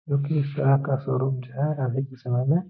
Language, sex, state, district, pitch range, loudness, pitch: Hindi, male, Bihar, Gaya, 130-145 Hz, -25 LUFS, 135 Hz